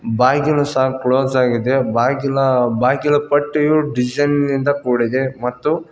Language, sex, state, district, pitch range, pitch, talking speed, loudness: Kannada, male, Karnataka, Koppal, 125-145 Hz, 135 Hz, 110 wpm, -17 LUFS